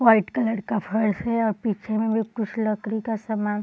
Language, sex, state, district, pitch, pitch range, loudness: Hindi, female, Bihar, Sitamarhi, 220 Hz, 215-225 Hz, -25 LUFS